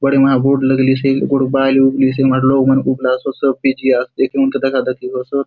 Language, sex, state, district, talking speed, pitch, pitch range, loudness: Halbi, male, Chhattisgarh, Bastar, 250 wpm, 135 Hz, 130-135 Hz, -14 LUFS